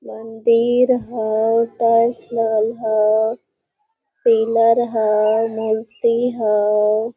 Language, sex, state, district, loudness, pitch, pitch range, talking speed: Hindi, female, Jharkhand, Sahebganj, -17 LUFS, 225 Hz, 220-235 Hz, 75 wpm